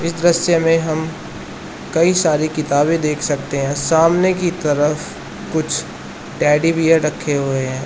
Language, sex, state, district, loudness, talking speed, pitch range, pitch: Hindi, male, Uttar Pradesh, Shamli, -17 LUFS, 145 wpm, 145-165 Hz, 155 Hz